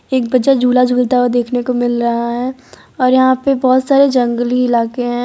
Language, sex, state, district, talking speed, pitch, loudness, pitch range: Hindi, female, Gujarat, Valsad, 205 wpm, 250 Hz, -14 LUFS, 245-260 Hz